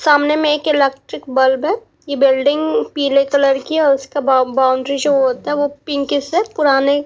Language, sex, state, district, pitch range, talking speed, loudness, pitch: Hindi, female, Bihar, Kaimur, 270-295 Hz, 205 wpm, -16 LUFS, 280 Hz